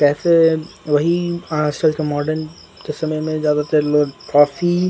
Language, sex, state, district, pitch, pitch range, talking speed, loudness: Hindi, male, Bihar, Patna, 155 Hz, 150-165 Hz, 125 wpm, -18 LUFS